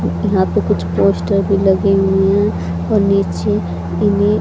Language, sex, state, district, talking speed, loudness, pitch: Hindi, female, Haryana, Jhajjar, 150 wpm, -15 LUFS, 195 Hz